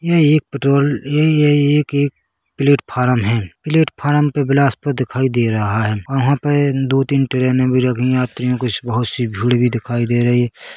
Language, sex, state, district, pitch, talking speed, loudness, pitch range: Hindi, male, Chhattisgarh, Bilaspur, 130 Hz, 200 wpm, -16 LUFS, 120-145 Hz